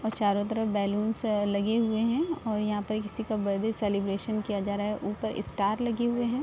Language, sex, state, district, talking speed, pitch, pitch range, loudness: Hindi, female, Bihar, Sitamarhi, 235 wpm, 215 Hz, 205-225 Hz, -29 LUFS